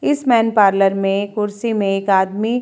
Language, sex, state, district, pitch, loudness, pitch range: Hindi, female, Uttar Pradesh, Jalaun, 205 Hz, -16 LUFS, 195-230 Hz